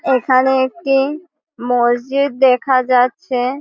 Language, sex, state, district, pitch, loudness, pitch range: Bengali, female, West Bengal, Malda, 260 Hz, -15 LUFS, 250-275 Hz